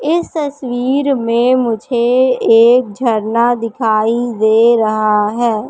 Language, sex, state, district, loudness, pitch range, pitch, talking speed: Hindi, female, Madhya Pradesh, Katni, -13 LUFS, 225-255 Hz, 235 Hz, 105 wpm